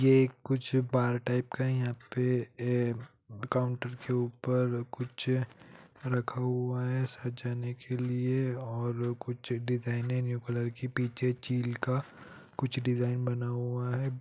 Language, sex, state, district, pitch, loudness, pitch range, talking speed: Hindi, male, Jharkhand, Jamtara, 125 Hz, -32 LUFS, 120-130 Hz, 135 wpm